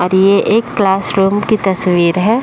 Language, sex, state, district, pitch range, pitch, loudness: Hindi, female, Uttar Pradesh, Deoria, 185-210 Hz, 195 Hz, -13 LUFS